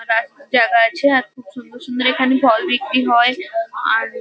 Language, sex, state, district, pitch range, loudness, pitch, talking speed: Bengali, female, West Bengal, Kolkata, 240-280 Hz, -16 LUFS, 255 Hz, 200 wpm